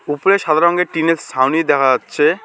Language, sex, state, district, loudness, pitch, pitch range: Bengali, male, West Bengal, Alipurduar, -15 LUFS, 165 Hz, 150-170 Hz